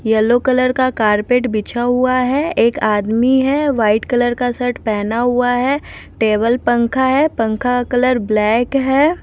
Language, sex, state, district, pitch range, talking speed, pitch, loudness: Hindi, female, Bihar, West Champaran, 225-255 Hz, 160 wpm, 245 Hz, -15 LUFS